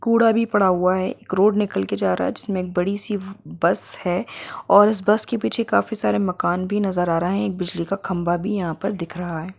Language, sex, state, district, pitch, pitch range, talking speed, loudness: Hindi, female, Bihar, Gopalganj, 195 Hz, 180-210 Hz, 250 wpm, -21 LUFS